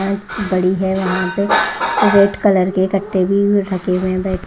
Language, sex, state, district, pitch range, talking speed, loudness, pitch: Hindi, female, Haryana, Jhajjar, 185-200 Hz, 150 wpm, -16 LUFS, 190 Hz